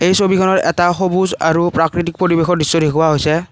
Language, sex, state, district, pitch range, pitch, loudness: Assamese, male, Assam, Kamrup Metropolitan, 160-185 Hz, 170 Hz, -14 LUFS